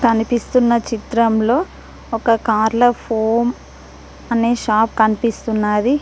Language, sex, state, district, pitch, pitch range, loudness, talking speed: Telugu, female, Telangana, Mahabubabad, 230 Hz, 220-240 Hz, -17 LUFS, 80 wpm